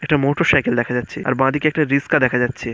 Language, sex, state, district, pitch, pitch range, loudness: Bengali, female, West Bengal, Purulia, 135 Hz, 125-145 Hz, -18 LUFS